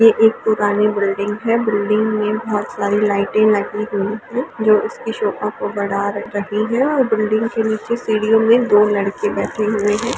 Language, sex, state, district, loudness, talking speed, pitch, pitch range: Hindi, female, Uttar Pradesh, Varanasi, -17 LUFS, 180 wpm, 215 Hz, 205-225 Hz